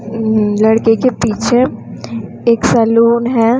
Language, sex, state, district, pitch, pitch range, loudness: Hindi, female, Bihar, Vaishali, 230 Hz, 220-235 Hz, -12 LUFS